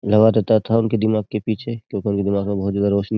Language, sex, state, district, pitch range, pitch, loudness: Hindi, male, Uttar Pradesh, Jyotiba Phule Nagar, 100-110 Hz, 105 Hz, -19 LUFS